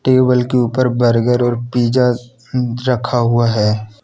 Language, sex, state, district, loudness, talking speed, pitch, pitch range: Hindi, male, Jharkhand, Deoghar, -15 LUFS, 135 wpm, 120 Hz, 120-125 Hz